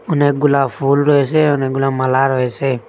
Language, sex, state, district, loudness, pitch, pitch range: Bengali, male, Assam, Hailakandi, -15 LUFS, 135 Hz, 130-145 Hz